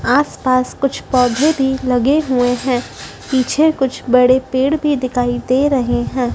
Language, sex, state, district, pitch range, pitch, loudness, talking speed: Hindi, female, Madhya Pradesh, Dhar, 250-275 Hz, 255 Hz, -15 LUFS, 160 wpm